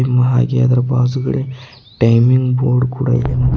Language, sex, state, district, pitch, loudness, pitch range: Kannada, male, Karnataka, Bidar, 125 Hz, -15 LUFS, 125-130 Hz